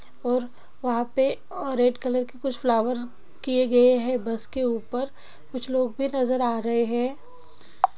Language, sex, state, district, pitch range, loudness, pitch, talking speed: Hindi, female, Bihar, Jahanabad, 245-260 Hz, -25 LUFS, 250 Hz, 160 wpm